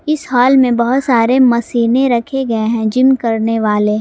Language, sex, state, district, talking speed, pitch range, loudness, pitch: Hindi, female, Jharkhand, Garhwa, 180 wpm, 225-260 Hz, -13 LUFS, 240 Hz